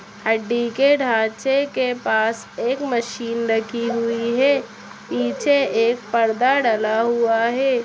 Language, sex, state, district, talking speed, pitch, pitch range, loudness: Hindi, female, Uttar Pradesh, Etah, 120 wpm, 235 Hz, 225-255 Hz, -20 LUFS